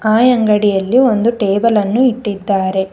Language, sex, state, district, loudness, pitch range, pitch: Kannada, female, Karnataka, Bangalore, -13 LUFS, 200-235 Hz, 210 Hz